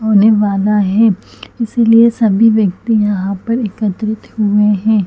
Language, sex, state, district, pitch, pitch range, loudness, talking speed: Hindi, female, Chhattisgarh, Bilaspur, 215 Hz, 205-225 Hz, -13 LUFS, 130 wpm